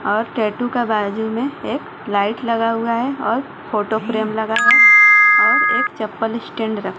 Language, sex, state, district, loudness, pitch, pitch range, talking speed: Hindi, female, Maharashtra, Mumbai Suburban, -15 LUFS, 230 Hz, 220-280 Hz, 170 wpm